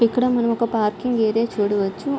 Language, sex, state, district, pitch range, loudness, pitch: Telugu, female, Andhra Pradesh, Srikakulam, 210-245 Hz, -21 LUFS, 230 Hz